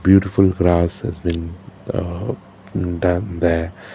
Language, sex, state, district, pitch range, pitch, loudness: English, male, Karnataka, Bangalore, 85-95 Hz, 95 Hz, -20 LUFS